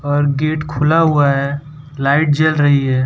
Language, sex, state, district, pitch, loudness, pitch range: Hindi, male, Gujarat, Valsad, 145 Hz, -15 LUFS, 140-150 Hz